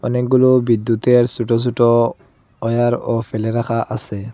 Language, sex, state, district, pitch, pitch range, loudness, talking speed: Bengali, male, Assam, Hailakandi, 120 Hz, 115-125 Hz, -16 LUFS, 110 wpm